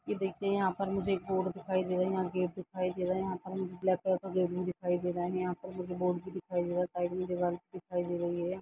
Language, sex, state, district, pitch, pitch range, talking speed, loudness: Hindi, female, Uttar Pradesh, Jalaun, 180 Hz, 180-185 Hz, 315 wpm, -34 LUFS